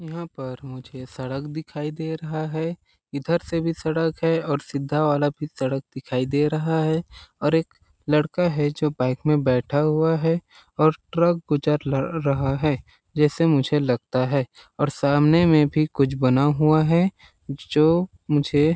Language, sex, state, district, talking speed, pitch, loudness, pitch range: Hindi, male, Chhattisgarh, Balrampur, 165 wpm, 150 Hz, -22 LUFS, 140-160 Hz